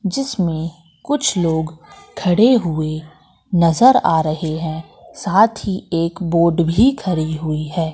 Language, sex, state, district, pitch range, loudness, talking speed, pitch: Hindi, female, Madhya Pradesh, Katni, 160-200 Hz, -17 LUFS, 130 wpm, 170 Hz